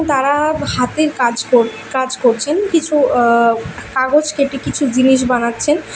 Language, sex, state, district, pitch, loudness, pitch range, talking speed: Bengali, female, West Bengal, Alipurduar, 265 Hz, -15 LUFS, 240-300 Hz, 130 wpm